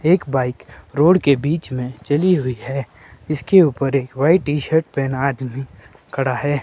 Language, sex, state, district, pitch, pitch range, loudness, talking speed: Hindi, male, Himachal Pradesh, Shimla, 140 Hz, 130-155 Hz, -18 LUFS, 165 wpm